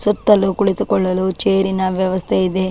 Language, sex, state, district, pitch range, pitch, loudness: Kannada, female, Karnataka, Dakshina Kannada, 185-195 Hz, 190 Hz, -17 LUFS